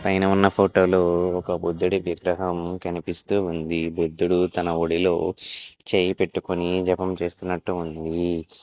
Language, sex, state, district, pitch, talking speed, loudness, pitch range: Telugu, male, Andhra Pradesh, Visakhapatnam, 90 Hz, 120 wpm, -24 LUFS, 85-90 Hz